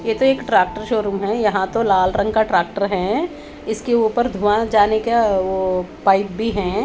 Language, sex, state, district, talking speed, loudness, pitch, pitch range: Hindi, female, Haryana, Charkhi Dadri, 200 wpm, -18 LUFS, 210 Hz, 195-225 Hz